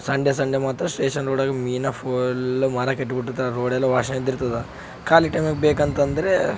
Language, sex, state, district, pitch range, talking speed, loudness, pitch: Kannada, male, Karnataka, Raichur, 125-140 Hz, 155 wpm, -22 LUFS, 135 Hz